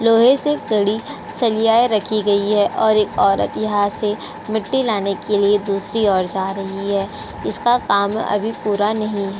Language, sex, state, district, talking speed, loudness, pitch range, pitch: Hindi, female, Uttar Pradesh, Jyotiba Phule Nagar, 170 wpm, -18 LUFS, 200-225 Hz, 210 Hz